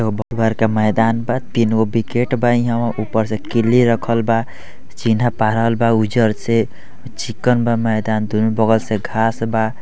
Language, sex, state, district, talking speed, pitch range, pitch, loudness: Hindi, male, Bihar, East Champaran, 200 wpm, 110-115 Hz, 115 Hz, -17 LUFS